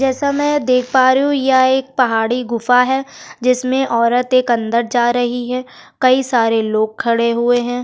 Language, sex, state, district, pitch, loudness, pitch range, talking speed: Hindi, female, Uttarakhand, Tehri Garhwal, 250 Hz, -15 LUFS, 235-260 Hz, 185 wpm